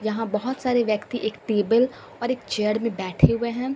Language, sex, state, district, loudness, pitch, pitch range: Hindi, female, Delhi, New Delhi, -24 LUFS, 225 Hz, 210-245 Hz